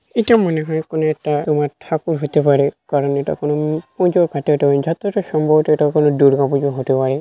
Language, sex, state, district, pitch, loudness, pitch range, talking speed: Bengali, male, West Bengal, North 24 Parganas, 150 Hz, -17 LUFS, 140-160 Hz, 175 wpm